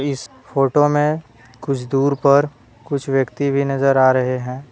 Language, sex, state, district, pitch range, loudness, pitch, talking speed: Hindi, male, Jharkhand, Deoghar, 130-140 Hz, -18 LUFS, 135 Hz, 165 wpm